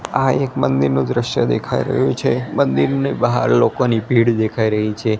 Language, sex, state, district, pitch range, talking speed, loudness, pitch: Gujarati, male, Gujarat, Gandhinagar, 70-110 Hz, 160 wpm, -17 LUFS, 105 Hz